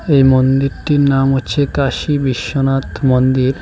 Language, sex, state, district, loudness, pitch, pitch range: Bengali, male, West Bengal, Cooch Behar, -14 LUFS, 135 Hz, 130-140 Hz